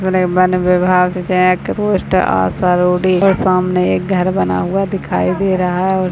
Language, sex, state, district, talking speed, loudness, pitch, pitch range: Hindi, male, Uttarakhand, Tehri Garhwal, 165 wpm, -14 LUFS, 185 Hz, 180-185 Hz